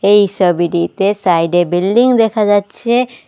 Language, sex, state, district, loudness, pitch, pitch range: Bengali, female, Assam, Hailakandi, -13 LUFS, 200 Hz, 175-220 Hz